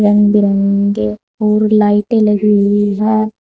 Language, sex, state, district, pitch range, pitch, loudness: Hindi, female, Uttar Pradesh, Saharanpur, 200-215 Hz, 210 Hz, -13 LUFS